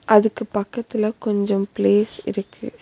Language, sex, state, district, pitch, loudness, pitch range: Tamil, female, Tamil Nadu, Nilgiris, 210 Hz, -21 LUFS, 200-220 Hz